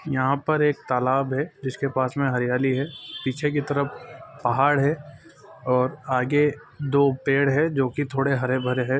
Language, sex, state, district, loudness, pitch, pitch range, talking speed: Hindi, male, Chhattisgarh, Bilaspur, -24 LUFS, 140 Hz, 130-145 Hz, 175 wpm